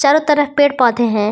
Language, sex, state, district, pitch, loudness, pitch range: Hindi, female, Jharkhand, Palamu, 285 Hz, -14 LUFS, 240-290 Hz